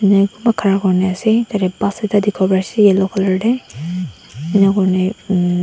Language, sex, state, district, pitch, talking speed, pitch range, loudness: Nagamese, female, Nagaland, Dimapur, 195 Hz, 180 wpm, 185-205 Hz, -16 LUFS